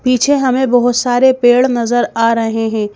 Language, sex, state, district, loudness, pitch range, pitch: Hindi, female, Madhya Pradesh, Bhopal, -12 LUFS, 230-255 Hz, 245 Hz